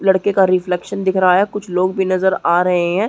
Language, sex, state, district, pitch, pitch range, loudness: Hindi, female, Chhattisgarh, Sarguja, 190 Hz, 180-195 Hz, -16 LUFS